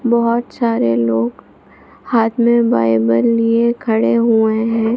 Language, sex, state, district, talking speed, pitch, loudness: Hindi, female, Bihar, Supaul, 135 wpm, 230 Hz, -15 LUFS